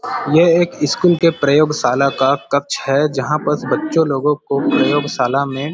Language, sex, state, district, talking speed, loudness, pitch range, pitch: Hindi, male, Chhattisgarh, Bilaspur, 155 wpm, -16 LUFS, 140-155 Hz, 145 Hz